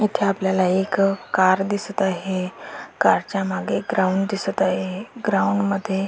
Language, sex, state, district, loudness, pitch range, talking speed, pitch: Marathi, female, Maharashtra, Dhule, -21 LUFS, 190-200 Hz, 140 wpm, 195 Hz